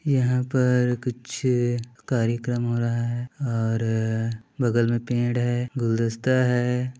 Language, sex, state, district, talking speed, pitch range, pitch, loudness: Chhattisgarhi, male, Chhattisgarh, Bilaspur, 130 wpm, 115-125 Hz, 120 Hz, -24 LUFS